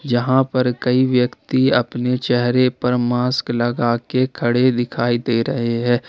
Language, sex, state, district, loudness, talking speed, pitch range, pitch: Hindi, male, Jharkhand, Ranchi, -18 LUFS, 140 wpm, 120-130 Hz, 125 Hz